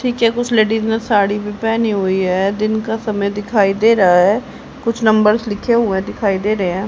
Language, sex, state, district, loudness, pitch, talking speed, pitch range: Hindi, female, Haryana, Jhajjar, -16 LUFS, 215 Hz, 210 wpm, 200-225 Hz